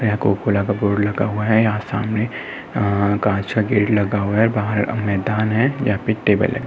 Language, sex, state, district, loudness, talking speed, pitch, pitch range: Hindi, male, Uttar Pradesh, Muzaffarnagar, -19 LUFS, 180 wpm, 105 Hz, 100-110 Hz